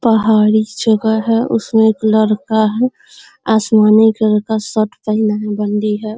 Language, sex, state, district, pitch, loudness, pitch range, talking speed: Hindi, female, Bihar, Sitamarhi, 220 Hz, -14 LUFS, 215-220 Hz, 145 wpm